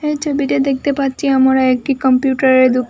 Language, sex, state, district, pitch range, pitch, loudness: Bengali, female, Assam, Hailakandi, 260-280 Hz, 265 Hz, -14 LUFS